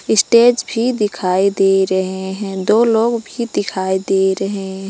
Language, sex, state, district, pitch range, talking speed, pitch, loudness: Hindi, female, Jharkhand, Palamu, 190-225 Hz, 160 wpm, 195 Hz, -16 LUFS